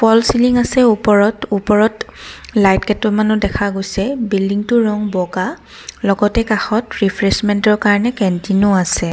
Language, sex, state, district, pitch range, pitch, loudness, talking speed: Assamese, female, Assam, Kamrup Metropolitan, 195-225 Hz, 210 Hz, -15 LUFS, 120 wpm